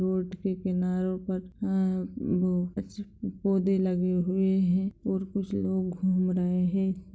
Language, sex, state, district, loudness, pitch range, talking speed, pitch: Hindi, female, Bihar, Madhepura, -28 LUFS, 185-195 Hz, 135 wpm, 185 Hz